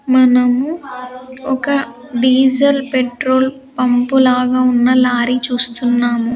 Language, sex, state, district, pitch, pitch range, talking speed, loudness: Telugu, female, Andhra Pradesh, Sri Satya Sai, 255 Hz, 245-265 Hz, 85 wpm, -14 LUFS